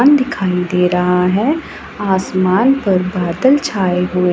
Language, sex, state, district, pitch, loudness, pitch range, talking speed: Hindi, female, Punjab, Pathankot, 185 Hz, -15 LUFS, 180-255 Hz, 140 wpm